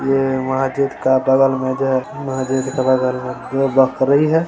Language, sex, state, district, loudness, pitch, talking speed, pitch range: Hindi, male, Bihar, Saran, -17 LUFS, 130 Hz, 185 wpm, 130-135 Hz